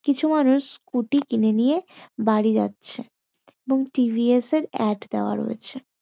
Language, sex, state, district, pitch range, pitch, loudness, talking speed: Bengali, female, West Bengal, North 24 Parganas, 220-280 Hz, 245 Hz, -23 LUFS, 130 wpm